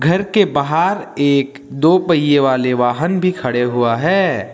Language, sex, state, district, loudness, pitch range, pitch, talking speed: Hindi, male, Jharkhand, Ranchi, -15 LUFS, 125-175 Hz, 145 Hz, 160 wpm